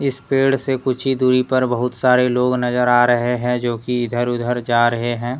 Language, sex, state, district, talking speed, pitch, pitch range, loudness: Hindi, male, Jharkhand, Deoghar, 220 wpm, 125 Hz, 120-130 Hz, -18 LUFS